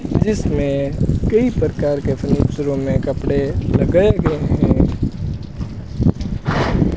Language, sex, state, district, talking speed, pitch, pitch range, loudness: Hindi, male, Rajasthan, Bikaner, 95 wpm, 140 Hz, 135-145 Hz, -18 LUFS